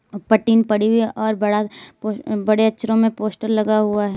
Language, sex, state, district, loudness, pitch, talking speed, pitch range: Hindi, female, Uttar Pradesh, Lalitpur, -18 LUFS, 215 Hz, 200 wpm, 210-220 Hz